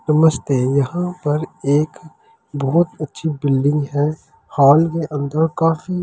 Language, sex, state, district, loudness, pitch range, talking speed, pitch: Hindi, male, Delhi, New Delhi, -18 LUFS, 145-165 Hz, 120 wpm, 150 Hz